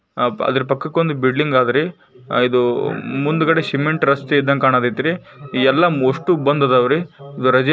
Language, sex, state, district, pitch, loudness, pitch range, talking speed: Kannada, male, Karnataka, Bijapur, 140 Hz, -17 LUFS, 130-155 Hz, 115 wpm